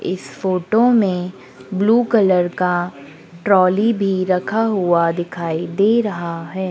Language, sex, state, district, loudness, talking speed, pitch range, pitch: Hindi, female, Madhya Pradesh, Dhar, -17 LUFS, 125 wpm, 175-205 Hz, 185 Hz